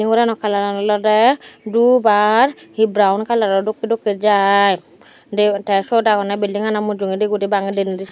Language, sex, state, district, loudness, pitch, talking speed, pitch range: Chakma, female, Tripura, Dhalai, -16 LUFS, 210 Hz, 150 wpm, 200-220 Hz